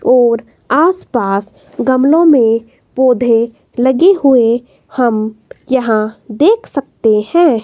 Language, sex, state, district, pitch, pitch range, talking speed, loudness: Hindi, female, Himachal Pradesh, Shimla, 245 Hz, 225-280 Hz, 95 wpm, -12 LUFS